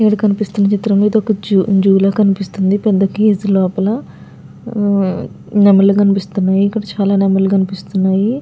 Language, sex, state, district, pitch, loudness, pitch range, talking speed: Telugu, female, Andhra Pradesh, Guntur, 200 Hz, -14 LUFS, 195-210 Hz, 130 wpm